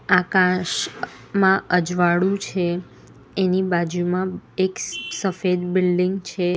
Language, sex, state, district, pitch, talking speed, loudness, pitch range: Gujarati, female, Gujarat, Valsad, 180 Hz, 90 wpm, -21 LUFS, 180-190 Hz